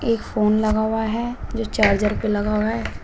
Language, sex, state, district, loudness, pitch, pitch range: Hindi, female, Uttar Pradesh, Shamli, -21 LUFS, 220 Hz, 210-225 Hz